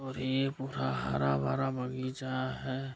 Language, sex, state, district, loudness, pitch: Hindi, male, Bihar, Kishanganj, -33 LUFS, 130 Hz